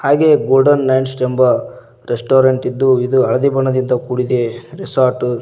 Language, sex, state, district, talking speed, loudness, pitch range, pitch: Kannada, male, Karnataka, Koppal, 135 wpm, -14 LUFS, 125-135 Hz, 130 Hz